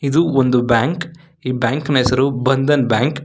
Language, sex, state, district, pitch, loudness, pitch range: Kannada, male, Karnataka, Bangalore, 135 Hz, -16 LUFS, 125-150 Hz